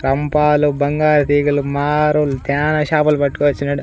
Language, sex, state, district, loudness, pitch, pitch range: Telugu, male, Andhra Pradesh, Annamaya, -16 LUFS, 145 Hz, 140-150 Hz